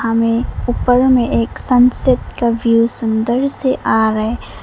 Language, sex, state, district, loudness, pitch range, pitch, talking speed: Hindi, female, Arunachal Pradesh, Papum Pare, -14 LUFS, 230-250 Hz, 235 Hz, 155 wpm